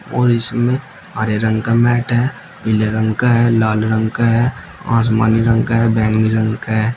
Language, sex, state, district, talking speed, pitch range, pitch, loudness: Hindi, male, Uttar Pradesh, Shamli, 200 wpm, 110-120 Hz, 115 Hz, -15 LUFS